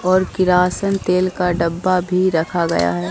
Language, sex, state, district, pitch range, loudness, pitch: Hindi, female, Bihar, Katihar, 170-185 Hz, -17 LUFS, 180 Hz